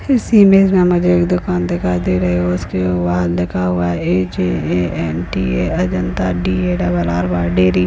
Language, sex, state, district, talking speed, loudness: Hindi, male, Maharashtra, Nagpur, 220 wpm, -16 LUFS